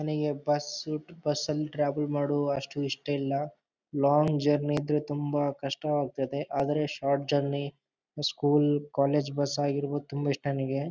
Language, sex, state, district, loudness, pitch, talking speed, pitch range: Kannada, male, Karnataka, Bellary, -29 LUFS, 145 Hz, 130 wpm, 140-150 Hz